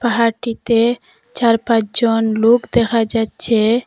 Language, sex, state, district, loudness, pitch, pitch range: Bengali, female, Assam, Hailakandi, -16 LUFS, 230 Hz, 225-235 Hz